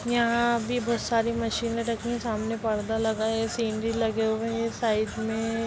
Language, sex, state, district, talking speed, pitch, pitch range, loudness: Hindi, female, Bihar, Muzaffarpur, 190 wpm, 225 Hz, 220-235 Hz, -27 LUFS